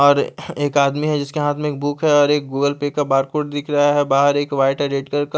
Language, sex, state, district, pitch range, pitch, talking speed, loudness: Hindi, male, Chandigarh, Chandigarh, 140-145 Hz, 145 Hz, 245 wpm, -18 LUFS